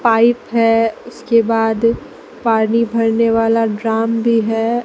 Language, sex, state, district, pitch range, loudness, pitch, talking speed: Hindi, female, Bihar, Katihar, 225-230 Hz, -15 LUFS, 225 Hz, 125 wpm